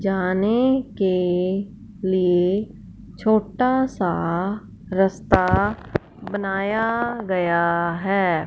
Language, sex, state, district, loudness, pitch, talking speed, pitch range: Hindi, female, Punjab, Fazilka, -21 LUFS, 195 Hz, 65 wpm, 185-215 Hz